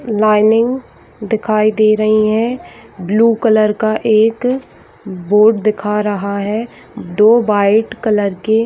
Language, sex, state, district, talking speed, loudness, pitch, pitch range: Hindi, female, Chhattisgarh, Bilaspur, 125 wpm, -14 LUFS, 215 Hz, 210-225 Hz